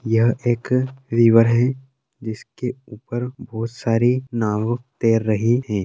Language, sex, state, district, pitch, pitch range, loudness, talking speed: Hindi, male, Maharashtra, Sindhudurg, 120 Hz, 115-125 Hz, -20 LUFS, 125 wpm